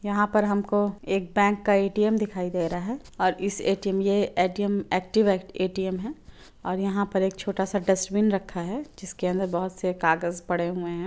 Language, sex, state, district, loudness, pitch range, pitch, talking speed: Hindi, female, Chhattisgarh, Bilaspur, -26 LUFS, 185-205 Hz, 195 Hz, 195 wpm